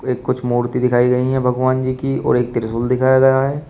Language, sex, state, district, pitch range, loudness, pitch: Hindi, male, Uttar Pradesh, Shamli, 125-130 Hz, -17 LUFS, 130 Hz